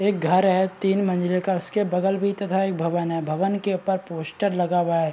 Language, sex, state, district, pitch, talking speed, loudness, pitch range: Hindi, male, Chhattisgarh, Raigarh, 190 Hz, 235 wpm, -23 LUFS, 175-195 Hz